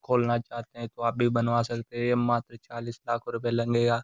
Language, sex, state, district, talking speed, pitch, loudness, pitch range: Hindi, male, Uttar Pradesh, Gorakhpur, 225 wpm, 120 Hz, -28 LUFS, 115-120 Hz